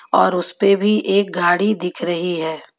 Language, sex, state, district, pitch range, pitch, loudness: Hindi, female, Jharkhand, Ranchi, 175-200 Hz, 180 Hz, -17 LUFS